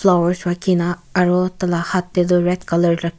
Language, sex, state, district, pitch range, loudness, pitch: Nagamese, female, Nagaland, Kohima, 170-180 Hz, -18 LUFS, 180 Hz